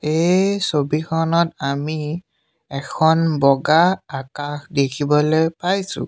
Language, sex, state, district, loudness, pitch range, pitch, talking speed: Assamese, male, Assam, Sonitpur, -19 LUFS, 145-170 Hz, 155 Hz, 80 wpm